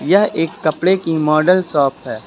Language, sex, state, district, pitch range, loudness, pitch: Hindi, male, Uttar Pradesh, Lucknow, 155-185 Hz, -16 LUFS, 165 Hz